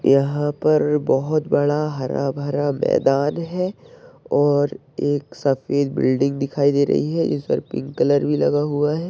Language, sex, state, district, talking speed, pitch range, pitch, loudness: Hindi, male, Maharashtra, Solapur, 145 wpm, 140-150 Hz, 145 Hz, -20 LUFS